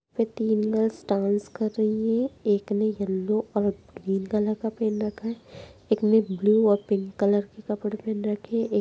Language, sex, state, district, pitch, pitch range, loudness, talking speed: Hindi, female, Bihar, Muzaffarpur, 215 Hz, 205-220 Hz, -26 LUFS, 205 wpm